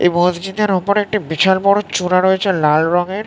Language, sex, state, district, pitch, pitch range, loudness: Bengali, male, West Bengal, North 24 Parganas, 190 Hz, 175-200 Hz, -15 LUFS